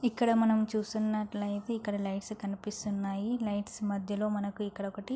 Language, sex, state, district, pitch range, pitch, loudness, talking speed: Telugu, female, Andhra Pradesh, Anantapur, 200-215 Hz, 210 Hz, -33 LUFS, 130 wpm